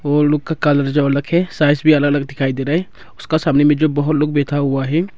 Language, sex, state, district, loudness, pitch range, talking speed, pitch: Hindi, male, Arunachal Pradesh, Longding, -16 LUFS, 145-155 Hz, 265 wpm, 145 Hz